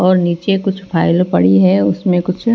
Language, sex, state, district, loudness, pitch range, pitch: Hindi, female, Himachal Pradesh, Shimla, -14 LUFS, 165-190 Hz, 180 Hz